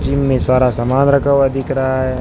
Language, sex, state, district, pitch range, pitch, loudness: Hindi, male, Rajasthan, Bikaner, 130-135 Hz, 135 Hz, -15 LUFS